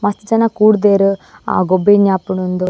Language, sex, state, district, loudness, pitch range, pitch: Tulu, female, Karnataka, Dakshina Kannada, -13 LUFS, 190-210 Hz, 200 Hz